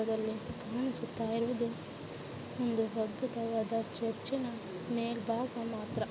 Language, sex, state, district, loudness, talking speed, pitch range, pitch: Kannada, female, Karnataka, Shimoga, -36 LUFS, 90 wpm, 220-235 Hz, 230 Hz